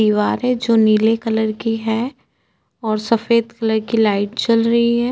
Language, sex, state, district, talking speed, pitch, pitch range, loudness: Hindi, female, Uttarakhand, Tehri Garhwal, 165 wpm, 225 Hz, 220-230 Hz, -17 LUFS